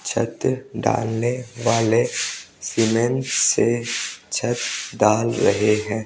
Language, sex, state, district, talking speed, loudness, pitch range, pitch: Hindi, male, Rajasthan, Jaipur, 90 wpm, -21 LUFS, 110-120 Hz, 115 Hz